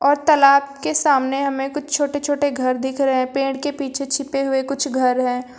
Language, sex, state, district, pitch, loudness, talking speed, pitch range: Hindi, female, Uttar Pradesh, Lucknow, 275 Hz, -19 LUFS, 215 wpm, 265-285 Hz